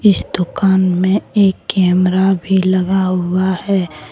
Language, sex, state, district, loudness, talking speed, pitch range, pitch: Hindi, female, Jharkhand, Deoghar, -15 LUFS, 130 wpm, 180-195 Hz, 185 Hz